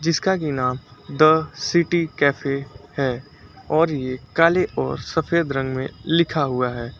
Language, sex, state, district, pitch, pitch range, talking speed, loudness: Hindi, male, Uttar Pradesh, Lucknow, 140 Hz, 130-165 Hz, 145 wpm, -21 LUFS